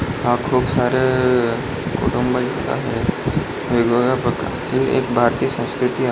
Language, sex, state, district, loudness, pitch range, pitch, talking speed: Marathi, male, Maharashtra, Pune, -19 LUFS, 120-130 Hz, 125 Hz, 135 wpm